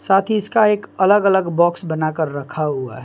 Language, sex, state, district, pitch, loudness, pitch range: Hindi, male, Bihar, Patna, 175 Hz, -17 LUFS, 155-200 Hz